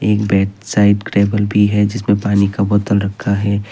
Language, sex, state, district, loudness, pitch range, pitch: Hindi, male, Assam, Kamrup Metropolitan, -15 LUFS, 100-105 Hz, 100 Hz